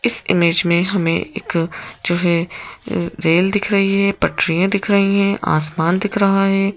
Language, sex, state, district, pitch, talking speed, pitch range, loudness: Hindi, female, Madhya Pradesh, Bhopal, 185 Hz, 170 wpm, 170-200 Hz, -17 LUFS